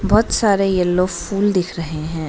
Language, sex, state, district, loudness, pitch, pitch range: Hindi, female, Arunachal Pradesh, Lower Dibang Valley, -18 LUFS, 185 Hz, 170-200 Hz